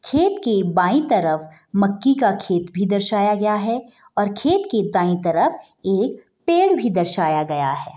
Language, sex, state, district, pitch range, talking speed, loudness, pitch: Hindi, female, Bihar, Bhagalpur, 180-245 Hz, 175 wpm, -19 LUFS, 205 Hz